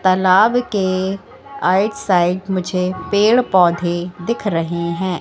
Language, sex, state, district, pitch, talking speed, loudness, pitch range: Hindi, female, Madhya Pradesh, Katni, 185 Hz, 115 wpm, -17 LUFS, 180-205 Hz